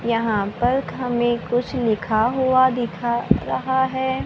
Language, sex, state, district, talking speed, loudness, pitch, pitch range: Hindi, female, Maharashtra, Gondia, 125 wpm, -21 LUFS, 240 Hz, 230-260 Hz